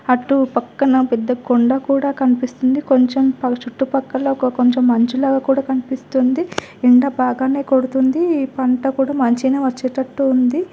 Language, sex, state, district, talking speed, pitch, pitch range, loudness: Telugu, female, Telangana, Nalgonda, 120 wpm, 265 Hz, 255-270 Hz, -17 LUFS